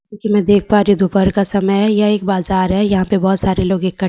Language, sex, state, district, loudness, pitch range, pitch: Hindi, female, Bihar, Katihar, -14 LUFS, 190-205 Hz, 195 Hz